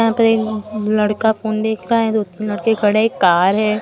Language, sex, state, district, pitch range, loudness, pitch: Hindi, female, Uttar Pradesh, Lucknow, 210-220 Hz, -17 LUFS, 215 Hz